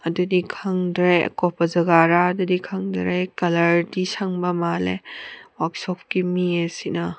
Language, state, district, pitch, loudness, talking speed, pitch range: Manipuri, Manipur, Imphal West, 175 Hz, -21 LUFS, 125 wpm, 170-180 Hz